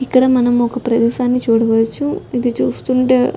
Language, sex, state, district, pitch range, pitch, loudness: Telugu, female, Telangana, Karimnagar, 235-255 Hz, 250 Hz, -15 LUFS